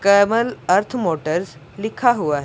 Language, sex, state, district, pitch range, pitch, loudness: Hindi, female, Punjab, Pathankot, 160-230 Hz, 200 Hz, -19 LUFS